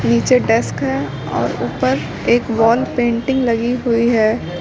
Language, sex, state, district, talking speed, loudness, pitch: Hindi, female, Uttar Pradesh, Lucknow, 145 wpm, -16 LUFS, 225 Hz